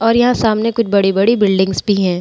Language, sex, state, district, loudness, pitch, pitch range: Hindi, female, Bihar, Vaishali, -14 LUFS, 210 Hz, 195-230 Hz